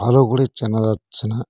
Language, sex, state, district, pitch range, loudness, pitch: Bengali, male, West Bengal, Cooch Behar, 110-130 Hz, -19 LUFS, 115 Hz